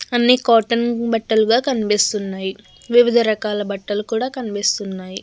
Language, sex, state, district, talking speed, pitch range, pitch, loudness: Telugu, female, Andhra Pradesh, Krishna, 115 wpm, 205-240 Hz, 220 Hz, -18 LUFS